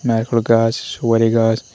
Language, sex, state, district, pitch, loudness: Bengali, male, Tripura, West Tripura, 115 Hz, -16 LUFS